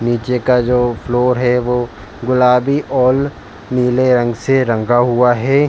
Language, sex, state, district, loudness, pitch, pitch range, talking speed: Hindi, male, Uttar Pradesh, Jalaun, -14 LUFS, 125 Hz, 120-125 Hz, 150 wpm